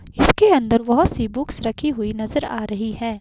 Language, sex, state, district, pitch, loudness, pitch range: Hindi, female, Himachal Pradesh, Shimla, 230 Hz, -19 LUFS, 220-290 Hz